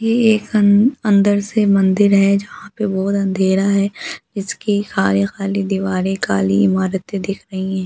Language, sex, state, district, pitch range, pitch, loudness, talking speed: Hindi, female, Delhi, New Delhi, 190-205 Hz, 200 Hz, -16 LUFS, 160 wpm